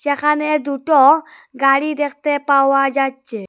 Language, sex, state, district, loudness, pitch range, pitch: Bengali, female, Assam, Hailakandi, -16 LUFS, 275-300 Hz, 285 Hz